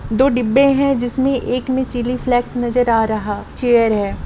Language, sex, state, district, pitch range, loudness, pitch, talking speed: Hindi, female, Jharkhand, Sahebganj, 235-260 Hz, -17 LUFS, 245 Hz, 170 wpm